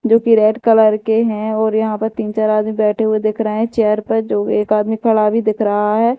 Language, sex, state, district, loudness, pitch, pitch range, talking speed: Hindi, female, Madhya Pradesh, Dhar, -15 LUFS, 220 Hz, 215-225 Hz, 260 wpm